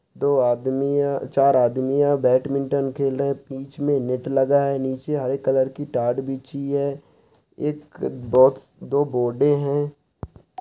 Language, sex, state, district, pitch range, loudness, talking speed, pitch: Hindi, male, Bihar, Saharsa, 130-140 Hz, -22 LUFS, 155 wpm, 140 Hz